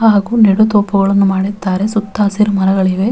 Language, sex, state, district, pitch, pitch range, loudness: Kannada, female, Karnataka, Raichur, 200 Hz, 195-210 Hz, -13 LUFS